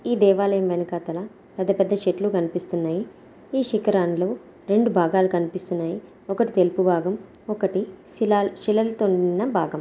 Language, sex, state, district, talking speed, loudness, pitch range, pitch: Telugu, female, Telangana, Nalgonda, 120 wpm, -23 LUFS, 180-205 Hz, 190 Hz